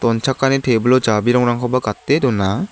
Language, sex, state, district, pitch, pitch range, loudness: Garo, male, Meghalaya, South Garo Hills, 125 Hz, 115-130 Hz, -16 LUFS